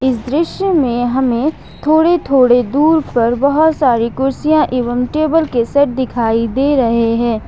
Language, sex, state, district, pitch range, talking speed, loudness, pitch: Hindi, female, Jharkhand, Ranchi, 240-305 Hz, 150 wpm, -14 LUFS, 260 Hz